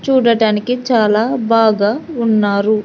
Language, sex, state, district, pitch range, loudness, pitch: Telugu, female, Andhra Pradesh, Sri Satya Sai, 210-245 Hz, -14 LUFS, 225 Hz